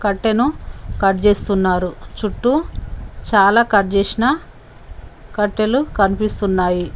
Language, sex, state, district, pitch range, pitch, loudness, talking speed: Telugu, female, Telangana, Mahabubabad, 195-230 Hz, 205 Hz, -17 LUFS, 75 wpm